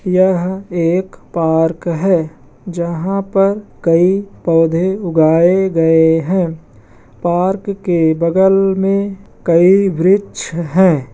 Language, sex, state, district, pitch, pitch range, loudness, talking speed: Hindi, male, Bihar, Madhepura, 175 Hz, 165-190 Hz, -14 LUFS, 110 wpm